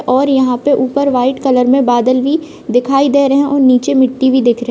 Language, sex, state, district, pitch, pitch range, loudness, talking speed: Hindi, female, Bihar, Madhepura, 260 Hz, 250-280 Hz, -12 LUFS, 255 wpm